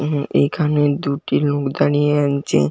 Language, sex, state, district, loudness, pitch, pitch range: Bengali, male, West Bengal, Jhargram, -18 LUFS, 145 Hz, 140-145 Hz